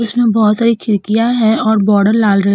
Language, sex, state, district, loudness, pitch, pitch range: Hindi, female, Uttar Pradesh, Jalaun, -12 LUFS, 220 Hz, 210-230 Hz